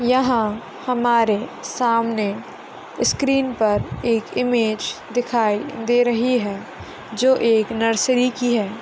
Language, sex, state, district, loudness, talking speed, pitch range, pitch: Hindi, female, Maharashtra, Solapur, -20 LUFS, 110 wpm, 220-250 Hz, 235 Hz